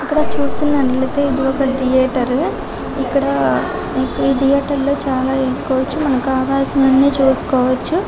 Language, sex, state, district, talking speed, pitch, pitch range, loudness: Telugu, female, Telangana, Karimnagar, 95 wpm, 270 Hz, 260-280 Hz, -16 LUFS